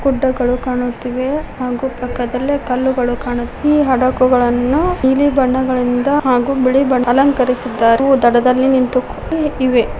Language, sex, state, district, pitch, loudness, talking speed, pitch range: Kannada, female, Karnataka, Koppal, 255 Hz, -15 LUFS, 110 wpm, 245-270 Hz